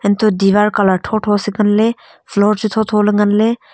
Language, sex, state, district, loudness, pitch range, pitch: Wancho, female, Arunachal Pradesh, Longding, -14 LUFS, 205-215 Hz, 210 Hz